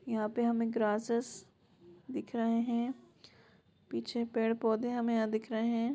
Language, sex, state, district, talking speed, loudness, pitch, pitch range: Hindi, female, Bihar, Purnia, 150 wpm, -34 LUFS, 230 Hz, 220-235 Hz